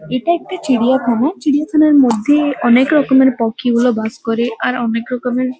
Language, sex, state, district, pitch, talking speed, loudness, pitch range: Bengali, female, West Bengal, Kolkata, 255 Hz, 150 wpm, -14 LUFS, 235-285 Hz